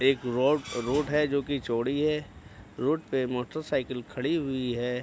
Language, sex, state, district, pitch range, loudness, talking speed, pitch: Hindi, male, Bihar, Araria, 125-145 Hz, -29 LUFS, 165 wpm, 130 Hz